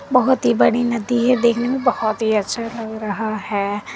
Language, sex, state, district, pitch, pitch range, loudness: Hindi, female, Uttar Pradesh, Lalitpur, 230 Hz, 215-245 Hz, -19 LUFS